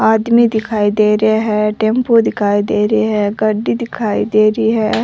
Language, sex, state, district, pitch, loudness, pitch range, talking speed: Rajasthani, female, Rajasthan, Churu, 215 Hz, -14 LUFS, 210-225 Hz, 180 wpm